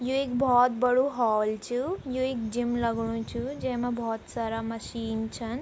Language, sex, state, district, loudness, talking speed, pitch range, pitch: Garhwali, female, Uttarakhand, Tehri Garhwal, -28 LUFS, 170 wpm, 225-250 Hz, 240 Hz